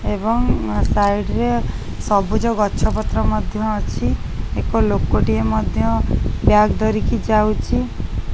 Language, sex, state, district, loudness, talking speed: Odia, female, Odisha, Khordha, -19 LUFS, 115 wpm